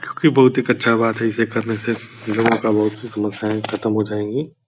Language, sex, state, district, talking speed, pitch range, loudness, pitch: Hindi, male, Bihar, Purnia, 230 wpm, 110-120 Hz, -19 LUFS, 115 Hz